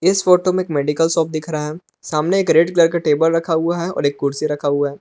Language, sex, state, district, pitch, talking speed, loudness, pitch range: Hindi, male, Jharkhand, Palamu, 160 Hz, 285 wpm, -17 LUFS, 150-170 Hz